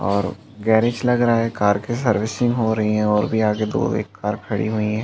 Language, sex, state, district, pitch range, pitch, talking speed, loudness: Hindi, male, Chhattisgarh, Balrampur, 105-115 Hz, 110 Hz, 240 wpm, -20 LUFS